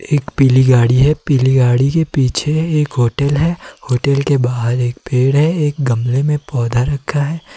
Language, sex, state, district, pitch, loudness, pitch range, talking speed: Hindi, male, Himachal Pradesh, Shimla, 140 Hz, -14 LUFS, 125-150 Hz, 180 wpm